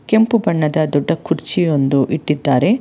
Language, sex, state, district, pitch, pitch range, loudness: Kannada, female, Karnataka, Bangalore, 155 Hz, 145-200 Hz, -16 LUFS